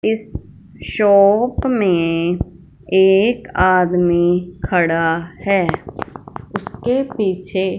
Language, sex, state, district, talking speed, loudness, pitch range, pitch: Hindi, female, Punjab, Fazilka, 70 wpm, -16 LUFS, 175-205 Hz, 185 Hz